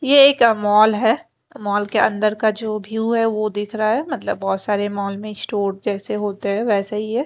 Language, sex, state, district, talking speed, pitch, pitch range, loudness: Hindi, female, Maharashtra, Mumbai Suburban, 225 wpm, 215 Hz, 205-225 Hz, -19 LUFS